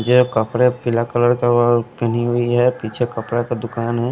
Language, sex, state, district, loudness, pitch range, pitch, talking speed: Hindi, male, Punjab, Kapurthala, -18 LUFS, 115-120 Hz, 120 Hz, 205 wpm